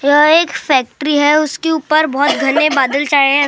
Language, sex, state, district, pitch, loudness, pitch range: Hindi, male, Maharashtra, Gondia, 290 Hz, -13 LUFS, 280-310 Hz